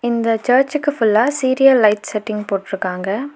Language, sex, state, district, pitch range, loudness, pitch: Tamil, female, Tamil Nadu, Nilgiris, 210-265 Hz, -16 LUFS, 225 Hz